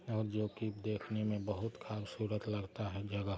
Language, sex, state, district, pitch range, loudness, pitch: Hindi, male, Bihar, Gopalganj, 100-110 Hz, -40 LUFS, 105 Hz